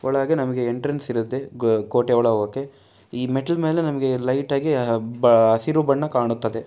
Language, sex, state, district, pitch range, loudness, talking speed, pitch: Kannada, male, Karnataka, Bellary, 115-140 Hz, -21 LUFS, 170 wpm, 125 Hz